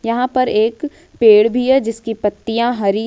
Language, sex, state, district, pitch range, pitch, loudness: Hindi, female, Jharkhand, Ranchi, 220-250 Hz, 230 Hz, -15 LUFS